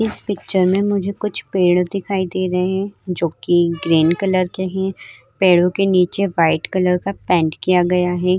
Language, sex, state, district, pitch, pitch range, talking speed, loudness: Hindi, female, Uttar Pradesh, Hamirpur, 185 Hz, 180-195 Hz, 185 wpm, -18 LUFS